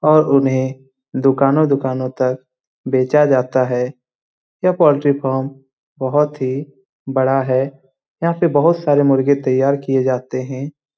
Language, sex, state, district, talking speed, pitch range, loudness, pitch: Hindi, male, Bihar, Lakhisarai, 135 wpm, 130-145 Hz, -17 LUFS, 135 Hz